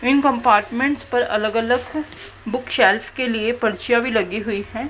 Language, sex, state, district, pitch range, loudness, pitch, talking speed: Hindi, female, Haryana, Jhajjar, 220-255 Hz, -20 LUFS, 235 Hz, 160 wpm